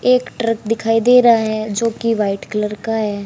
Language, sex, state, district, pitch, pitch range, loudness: Hindi, female, Haryana, Charkhi Dadri, 225 Hz, 210-230 Hz, -16 LUFS